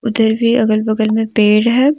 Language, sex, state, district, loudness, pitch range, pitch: Hindi, female, Jharkhand, Deoghar, -13 LUFS, 220-235 Hz, 220 Hz